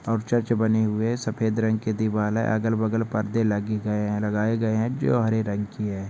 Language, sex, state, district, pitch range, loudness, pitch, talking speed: Hindi, male, Maharashtra, Pune, 105-115 Hz, -24 LUFS, 110 Hz, 235 wpm